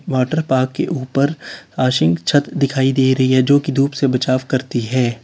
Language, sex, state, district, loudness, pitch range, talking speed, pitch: Hindi, male, Uttar Pradesh, Lalitpur, -17 LUFS, 130-140 Hz, 160 wpm, 130 Hz